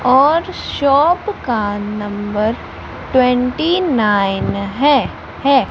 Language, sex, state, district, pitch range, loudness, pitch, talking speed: Hindi, female, Madhya Pradesh, Umaria, 210-290 Hz, -16 LUFS, 255 Hz, 85 wpm